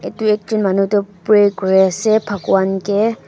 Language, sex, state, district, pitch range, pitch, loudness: Nagamese, female, Nagaland, Dimapur, 195-215 Hz, 200 Hz, -15 LUFS